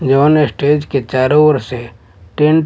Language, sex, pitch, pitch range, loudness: Bhojpuri, male, 140 Hz, 125-150 Hz, -13 LUFS